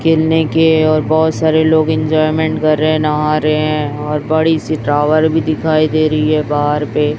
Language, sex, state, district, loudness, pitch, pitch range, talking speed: Hindi, female, Chhattisgarh, Raipur, -13 LUFS, 155 Hz, 150-160 Hz, 210 wpm